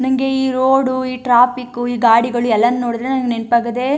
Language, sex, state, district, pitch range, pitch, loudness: Kannada, female, Karnataka, Chamarajanagar, 240-260 Hz, 245 Hz, -15 LUFS